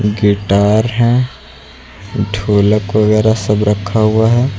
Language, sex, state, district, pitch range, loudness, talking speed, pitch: Hindi, male, Uttar Pradesh, Lucknow, 100-110 Hz, -13 LUFS, 105 wpm, 105 Hz